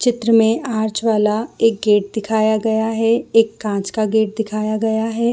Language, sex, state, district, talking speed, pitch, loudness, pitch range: Hindi, female, Jharkhand, Jamtara, 180 wpm, 220 Hz, -17 LUFS, 215-225 Hz